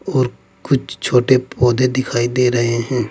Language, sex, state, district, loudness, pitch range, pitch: Hindi, male, Uttar Pradesh, Saharanpur, -17 LUFS, 120-130 Hz, 125 Hz